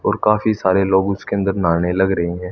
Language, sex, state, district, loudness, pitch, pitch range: Hindi, male, Haryana, Rohtak, -17 LUFS, 95 Hz, 90-100 Hz